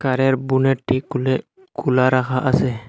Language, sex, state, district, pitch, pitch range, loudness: Bengali, male, Assam, Hailakandi, 130 Hz, 130-135 Hz, -19 LUFS